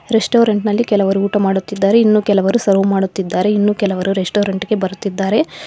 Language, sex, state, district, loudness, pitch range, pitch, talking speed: Kannada, female, Karnataka, Bangalore, -15 LUFS, 195-215 Hz, 200 Hz, 150 wpm